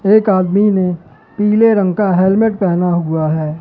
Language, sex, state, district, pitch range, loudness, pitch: Hindi, male, Madhya Pradesh, Katni, 175-210 Hz, -13 LUFS, 190 Hz